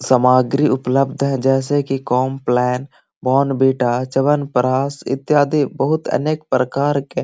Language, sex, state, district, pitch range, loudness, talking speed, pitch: Magahi, male, Bihar, Gaya, 130-140 Hz, -17 LUFS, 115 wpm, 135 Hz